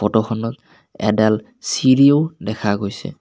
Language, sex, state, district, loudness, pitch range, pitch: Assamese, male, Assam, Kamrup Metropolitan, -18 LUFS, 105-130 Hz, 110 Hz